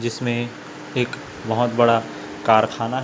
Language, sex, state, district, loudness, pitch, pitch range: Hindi, male, Chhattisgarh, Raipur, -21 LUFS, 115 Hz, 110-120 Hz